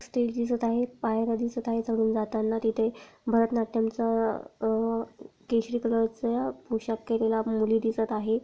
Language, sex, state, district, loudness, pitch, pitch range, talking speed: Marathi, female, Maharashtra, Pune, -28 LUFS, 225 Hz, 225-235 Hz, 135 wpm